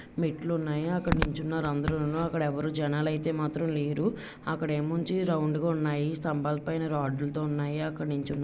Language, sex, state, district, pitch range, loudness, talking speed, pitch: Telugu, female, Andhra Pradesh, Visakhapatnam, 150-160 Hz, -30 LUFS, 165 wpm, 155 Hz